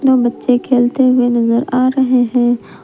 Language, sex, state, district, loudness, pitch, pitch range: Hindi, female, Jharkhand, Palamu, -13 LUFS, 250 Hz, 240-255 Hz